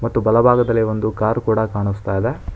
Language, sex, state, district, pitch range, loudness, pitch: Kannada, male, Karnataka, Bangalore, 110-115 Hz, -18 LUFS, 110 Hz